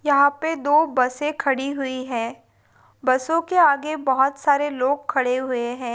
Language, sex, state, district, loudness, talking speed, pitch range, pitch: Hindi, female, Maharashtra, Pune, -21 LUFS, 150 wpm, 255-295 Hz, 275 Hz